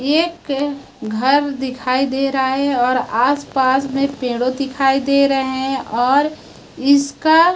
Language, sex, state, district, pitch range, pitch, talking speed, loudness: Hindi, male, Chhattisgarh, Raipur, 260-280 Hz, 270 Hz, 135 wpm, -17 LUFS